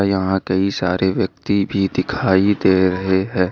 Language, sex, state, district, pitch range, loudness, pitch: Hindi, male, Jharkhand, Ranchi, 95-100 Hz, -18 LUFS, 95 Hz